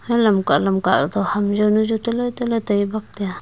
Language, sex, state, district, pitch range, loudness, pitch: Wancho, female, Arunachal Pradesh, Longding, 200-230 Hz, -19 LUFS, 210 Hz